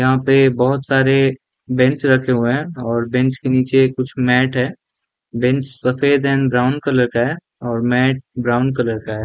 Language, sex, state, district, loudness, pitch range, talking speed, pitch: Hindi, male, Jharkhand, Jamtara, -17 LUFS, 125-135 Hz, 180 wpm, 130 Hz